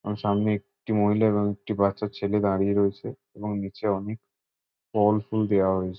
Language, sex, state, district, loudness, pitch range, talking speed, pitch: Bengali, male, West Bengal, Jalpaiguri, -25 LUFS, 100-105 Hz, 150 wpm, 105 Hz